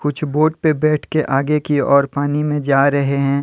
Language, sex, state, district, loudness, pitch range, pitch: Hindi, male, Jharkhand, Deoghar, -17 LUFS, 140-150 Hz, 145 Hz